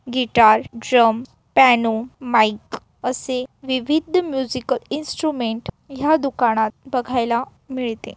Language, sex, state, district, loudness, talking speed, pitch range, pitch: Marathi, female, Maharashtra, Solapur, -19 LUFS, 90 wpm, 230-265 Hz, 250 Hz